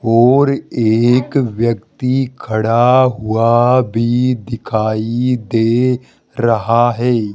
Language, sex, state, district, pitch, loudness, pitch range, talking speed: Hindi, male, Rajasthan, Jaipur, 120 Hz, -14 LUFS, 115-125 Hz, 80 wpm